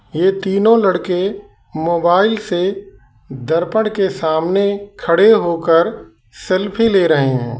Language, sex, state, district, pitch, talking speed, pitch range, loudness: Hindi, male, Uttar Pradesh, Lalitpur, 180 Hz, 110 wpm, 160-200 Hz, -15 LUFS